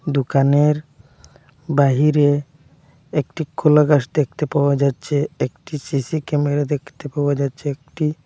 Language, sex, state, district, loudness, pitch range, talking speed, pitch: Bengali, male, Assam, Hailakandi, -19 LUFS, 140-150 Hz, 100 wpm, 145 Hz